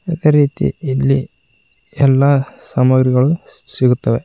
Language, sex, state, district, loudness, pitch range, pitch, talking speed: Kannada, male, Karnataka, Koppal, -15 LUFS, 130-145 Hz, 135 Hz, 85 wpm